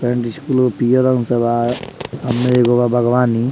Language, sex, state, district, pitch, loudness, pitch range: Bhojpuri, male, Bihar, Muzaffarpur, 120 Hz, -16 LUFS, 120-125 Hz